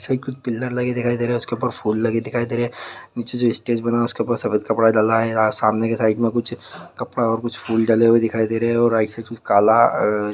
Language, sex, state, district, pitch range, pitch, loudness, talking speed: Hindi, male, Andhra Pradesh, Guntur, 110-120 Hz, 115 Hz, -19 LUFS, 265 wpm